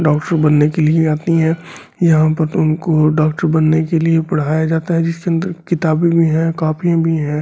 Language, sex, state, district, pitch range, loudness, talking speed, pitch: Hindi, male, Delhi, New Delhi, 155-165 Hz, -15 LUFS, 200 wpm, 160 Hz